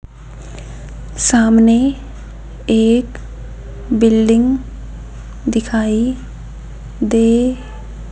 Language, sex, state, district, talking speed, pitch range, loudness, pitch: Hindi, female, Haryana, Charkhi Dadri, 45 wpm, 225-250 Hz, -14 LUFS, 230 Hz